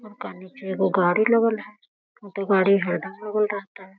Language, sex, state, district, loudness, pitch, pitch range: Hindi, female, Bihar, Lakhisarai, -22 LUFS, 200 Hz, 190-215 Hz